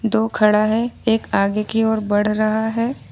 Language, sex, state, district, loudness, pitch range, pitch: Hindi, female, Jharkhand, Ranchi, -18 LUFS, 210-225 Hz, 220 Hz